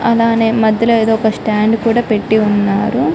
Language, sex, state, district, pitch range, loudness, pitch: Telugu, female, Telangana, Karimnagar, 215-230 Hz, -13 LUFS, 225 Hz